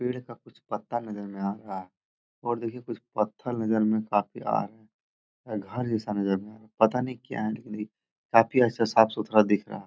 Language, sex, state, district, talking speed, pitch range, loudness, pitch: Hindi, male, Bihar, Jahanabad, 225 wpm, 105-120 Hz, -28 LUFS, 110 Hz